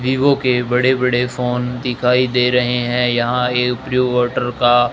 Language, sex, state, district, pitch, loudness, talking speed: Hindi, male, Rajasthan, Bikaner, 125 Hz, -16 LUFS, 170 wpm